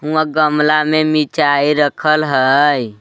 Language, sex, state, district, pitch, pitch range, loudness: Magahi, male, Jharkhand, Palamu, 150 Hz, 145-155 Hz, -14 LUFS